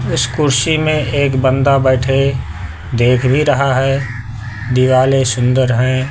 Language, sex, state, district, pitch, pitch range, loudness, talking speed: Hindi, male, Delhi, New Delhi, 130 Hz, 125-135 Hz, -14 LUFS, 125 wpm